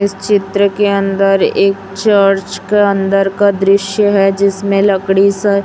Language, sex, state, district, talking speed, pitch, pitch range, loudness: Hindi, female, Chhattisgarh, Raipur, 150 wpm, 200 Hz, 195-200 Hz, -12 LUFS